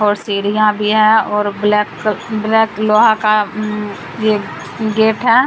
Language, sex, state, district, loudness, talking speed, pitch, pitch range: Hindi, female, Bihar, Patna, -15 LUFS, 130 wpm, 215 Hz, 210-215 Hz